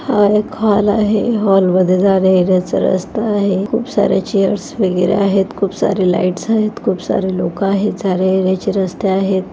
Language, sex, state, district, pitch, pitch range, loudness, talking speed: Marathi, female, Maharashtra, Pune, 195 Hz, 185-210 Hz, -15 LUFS, 170 wpm